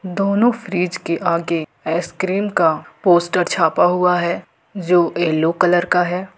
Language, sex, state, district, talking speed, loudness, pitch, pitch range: Hindi, female, Jharkhand, Ranchi, 140 wpm, -18 LUFS, 180 Hz, 170-185 Hz